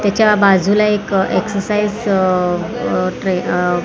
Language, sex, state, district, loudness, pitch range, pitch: Marathi, female, Maharashtra, Mumbai Suburban, -15 LUFS, 185-210 Hz, 195 Hz